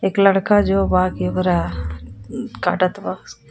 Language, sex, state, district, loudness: Bhojpuri, female, Jharkhand, Palamu, -19 LUFS